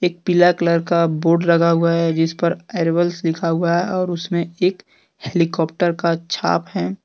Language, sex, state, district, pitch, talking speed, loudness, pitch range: Hindi, male, Jharkhand, Deoghar, 170 Hz, 170 wpm, -18 LUFS, 165-175 Hz